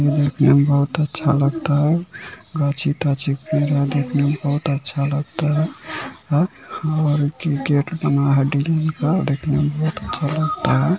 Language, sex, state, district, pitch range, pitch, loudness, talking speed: Hindi, male, Bihar, Bhagalpur, 140-155 Hz, 145 Hz, -20 LUFS, 120 wpm